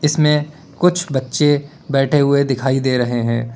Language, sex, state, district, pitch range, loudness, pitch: Hindi, male, Uttar Pradesh, Lalitpur, 130-150 Hz, -17 LUFS, 140 Hz